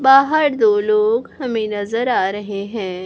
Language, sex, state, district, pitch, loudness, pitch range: Hindi, female, Chhattisgarh, Raipur, 250 Hz, -17 LUFS, 205-310 Hz